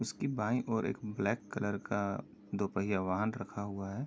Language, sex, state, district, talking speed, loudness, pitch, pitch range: Hindi, male, Uttar Pradesh, Jyotiba Phule Nagar, 190 wpm, -36 LUFS, 100 Hz, 100-115 Hz